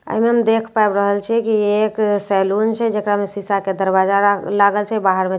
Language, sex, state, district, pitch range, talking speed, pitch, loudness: Maithili, female, Bihar, Katihar, 200-220 Hz, 265 wpm, 205 Hz, -17 LUFS